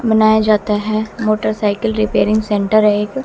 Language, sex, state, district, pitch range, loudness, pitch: Hindi, female, Bihar, West Champaran, 210-220 Hz, -15 LUFS, 215 Hz